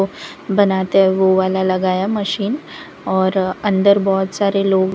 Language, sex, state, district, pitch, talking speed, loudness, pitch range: Hindi, female, Gujarat, Valsad, 195 Hz, 135 wpm, -16 LUFS, 190-200 Hz